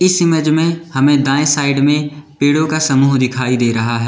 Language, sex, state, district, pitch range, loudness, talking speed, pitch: Hindi, male, Uttar Pradesh, Lalitpur, 135-155 Hz, -14 LUFS, 205 wpm, 145 Hz